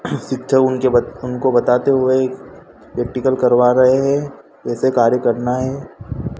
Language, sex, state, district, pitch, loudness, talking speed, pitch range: Hindi, male, Madhya Pradesh, Dhar, 130 Hz, -16 LUFS, 130 wpm, 125-130 Hz